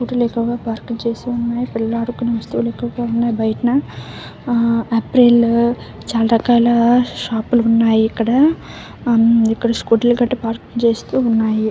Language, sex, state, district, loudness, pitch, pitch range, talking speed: Telugu, female, Andhra Pradesh, Visakhapatnam, -16 LUFS, 235 Hz, 230-240 Hz, 105 wpm